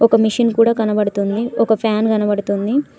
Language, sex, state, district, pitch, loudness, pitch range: Telugu, female, Telangana, Mahabubabad, 220 Hz, -16 LUFS, 210-230 Hz